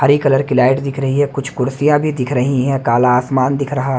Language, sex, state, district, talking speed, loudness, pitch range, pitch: Hindi, male, Haryana, Rohtak, 255 wpm, -15 LUFS, 130-140 Hz, 135 Hz